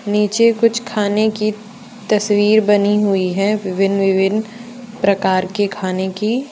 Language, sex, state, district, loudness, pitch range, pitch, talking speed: Hindi, female, Jharkhand, Deoghar, -16 LUFS, 195-220 Hz, 210 Hz, 130 wpm